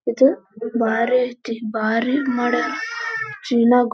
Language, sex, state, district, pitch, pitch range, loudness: Kannada, female, Karnataka, Belgaum, 245 Hz, 230-265 Hz, -20 LUFS